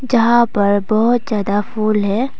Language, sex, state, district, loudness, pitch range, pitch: Hindi, female, Arunachal Pradesh, Papum Pare, -15 LUFS, 205-240 Hz, 215 Hz